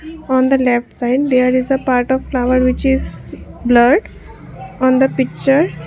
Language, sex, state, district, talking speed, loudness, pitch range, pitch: English, female, Assam, Kamrup Metropolitan, 165 wpm, -15 LUFS, 245-270 Hz, 255 Hz